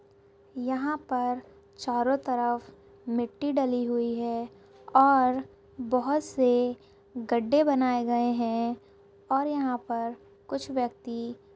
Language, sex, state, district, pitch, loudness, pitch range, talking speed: Hindi, female, Uttarakhand, Tehri Garhwal, 245 Hz, -28 LUFS, 235-265 Hz, 105 wpm